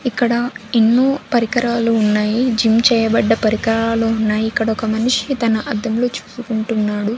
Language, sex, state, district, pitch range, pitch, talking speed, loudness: Telugu, female, Andhra Pradesh, Sri Satya Sai, 220-240 Hz, 225 Hz, 115 wpm, -16 LUFS